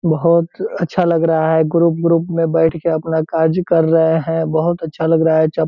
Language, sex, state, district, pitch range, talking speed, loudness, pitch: Hindi, male, Bihar, Purnia, 160-170 Hz, 235 wpm, -15 LUFS, 165 Hz